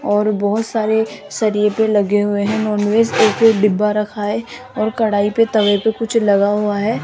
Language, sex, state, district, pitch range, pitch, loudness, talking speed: Hindi, female, Rajasthan, Jaipur, 205-220 Hz, 210 Hz, -16 LUFS, 190 wpm